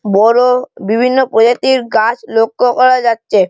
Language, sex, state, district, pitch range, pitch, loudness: Bengali, male, West Bengal, Malda, 225-250 Hz, 235 Hz, -12 LUFS